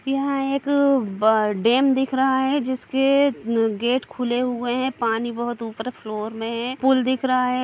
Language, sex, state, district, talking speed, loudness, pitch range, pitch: Hindi, female, Chhattisgarh, Kabirdham, 175 wpm, -21 LUFS, 230-265 Hz, 250 Hz